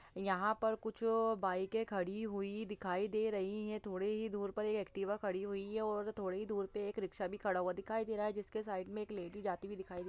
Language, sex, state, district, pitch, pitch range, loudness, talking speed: Hindi, female, Bihar, Saran, 205 Hz, 190-215 Hz, -39 LUFS, 245 wpm